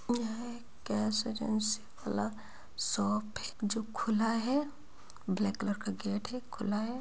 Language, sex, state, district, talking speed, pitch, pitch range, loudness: Hindi, male, Bihar, Purnia, 155 wpm, 215 Hz, 205-235 Hz, -35 LUFS